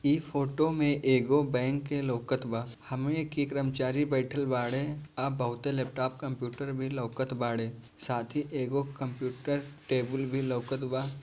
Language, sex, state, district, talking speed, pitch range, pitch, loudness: Bhojpuri, male, Bihar, Gopalganj, 145 wpm, 125-140 Hz, 135 Hz, -31 LUFS